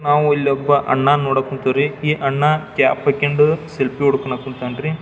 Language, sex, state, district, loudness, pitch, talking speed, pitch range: Kannada, male, Karnataka, Belgaum, -17 LUFS, 140 Hz, 145 wpm, 135-150 Hz